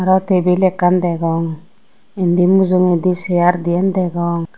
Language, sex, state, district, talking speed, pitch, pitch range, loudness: Chakma, female, Tripura, Unakoti, 120 wpm, 180 Hz, 175-185 Hz, -15 LUFS